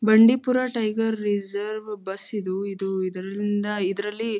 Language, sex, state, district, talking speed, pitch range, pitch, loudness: Kannada, female, Karnataka, Gulbarga, 110 wpm, 195-220 Hz, 205 Hz, -24 LUFS